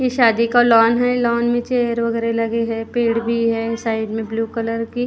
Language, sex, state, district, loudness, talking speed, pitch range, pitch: Hindi, female, Maharashtra, Gondia, -18 LUFS, 225 wpm, 225-240 Hz, 230 Hz